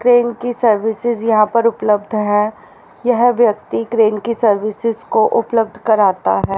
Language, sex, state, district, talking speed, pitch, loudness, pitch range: Hindi, female, Haryana, Charkhi Dadri, 145 wpm, 225 Hz, -15 LUFS, 210-235 Hz